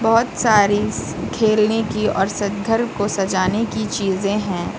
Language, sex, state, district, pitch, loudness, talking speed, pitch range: Hindi, female, Uttar Pradesh, Lucknow, 210 Hz, -19 LUFS, 140 wpm, 200-220 Hz